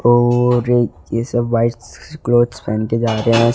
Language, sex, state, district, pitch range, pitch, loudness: Hindi, male, Delhi, New Delhi, 115-120 Hz, 120 Hz, -17 LUFS